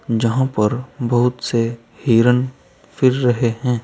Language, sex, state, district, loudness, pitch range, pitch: Hindi, male, Uttar Pradesh, Saharanpur, -18 LUFS, 115-130 Hz, 120 Hz